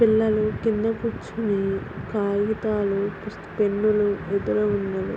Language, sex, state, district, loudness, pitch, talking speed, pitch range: Telugu, female, Andhra Pradesh, Guntur, -24 LUFS, 210 Hz, 80 wpm, 200-220 Hz